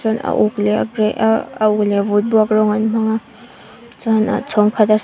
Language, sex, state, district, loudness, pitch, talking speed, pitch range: Mizo, female, Mizoram, Aizawl, -16 LUFS, 220 Hz, 225 wpm, 215-225 Hz